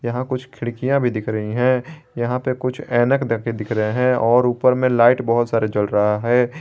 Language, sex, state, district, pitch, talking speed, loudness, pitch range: Hindi, male, Jharkhand, Garhwa, 120 Hz, 220 wpm, -19 LUFS, 115-130 Hz